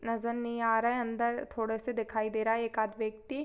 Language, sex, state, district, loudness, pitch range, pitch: Hindi, female, Jharkhand, Sahebganj, -32 LUFS, 220-235 Hz, 230 Hz